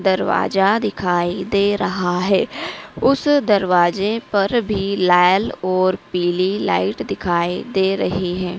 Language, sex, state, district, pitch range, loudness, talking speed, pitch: Hindi, female, Madhya Pradesh, Dhar, 180-200 Hz, -18 LUFS, 120 wpm, 190 Hz